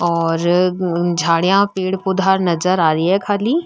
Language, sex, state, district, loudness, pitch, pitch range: Marwari, female, Rajasthan, Nagaur, -16 LUFS, 180 Hz, 170-190 Hz